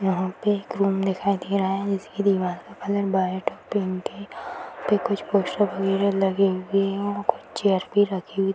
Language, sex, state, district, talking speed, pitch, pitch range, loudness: Hindi, female, Bihar, Purnia, 215 wpm, 195 Hz, 190-200 Hz, -24 LUFS